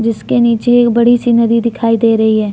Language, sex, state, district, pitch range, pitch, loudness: Hindi, female, Jharkhand, Deoghar, 230-235 Hz, 230 Hz, -11 LUFS